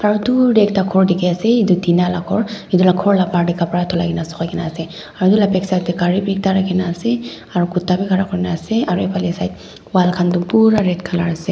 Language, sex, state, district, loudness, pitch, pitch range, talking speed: Nagamese, female, Nagaland, Dimapur, -16 LUFS, 185 Hz, 175-195 Hz, 245 wpm